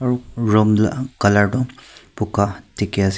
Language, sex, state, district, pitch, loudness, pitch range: Nagamese, male, Nagaland, Kohima, 105 Hz, -19 LUFS, 100-125 Hz